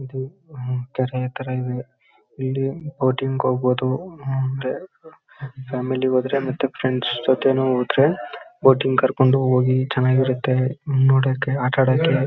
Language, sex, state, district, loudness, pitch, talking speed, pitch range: Kannada, male, Karnataka, Chamarajanagar, -21 LUFS, 130 Hz, 110 wpm, 130-135 Hz